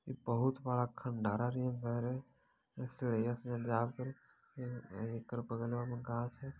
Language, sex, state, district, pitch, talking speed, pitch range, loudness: Maithili, male, Bihar, Madhepura, 120 Hz, 110 wpm, 120-125 Hz, -39 LUFS